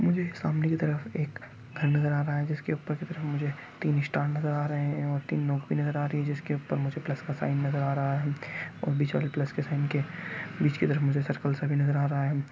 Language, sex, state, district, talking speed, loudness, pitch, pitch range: Hindi, male, Chhattisgarh, Raigarh, 270 wpm, -29 LUFS, 145 Hz, 140-150 Hz